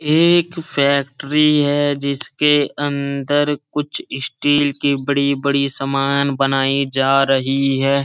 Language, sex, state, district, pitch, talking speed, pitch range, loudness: Hindi, male, Uttar Pradesh, Jalaun, 140 Hz, 105 wpm, 135-145 Hz, -17 LUFS